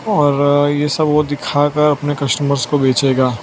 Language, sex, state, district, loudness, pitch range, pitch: Hindi, male, Gujarat, Valsad, -15 LUFS, 140-150 Hz, 145 Hz